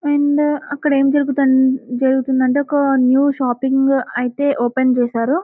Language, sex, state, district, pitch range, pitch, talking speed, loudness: Telugu, female, Telangana, Karimnagar, 260-285 Hz, 270 Hz, 120 wpm, -16 LUFS